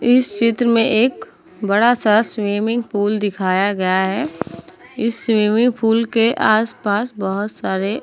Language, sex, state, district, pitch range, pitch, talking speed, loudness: Hindi, female, Uttar Pradesh, Muzaffarnagar, 205-235 Hz, 220 Hz, 150 wpm, -17 LUFS